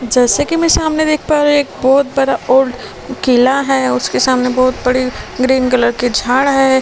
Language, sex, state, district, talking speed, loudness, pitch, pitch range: Hindi, female, Delhi, New Delhi, 195 wpm, -13 LUFS, 260 Hz, 250-280 Hz